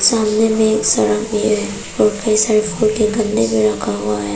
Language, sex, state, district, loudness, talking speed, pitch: Hindi, female, Arunachal Pradesh, Papum Pare, -16 LUFS, 135 wpm, 215 Hz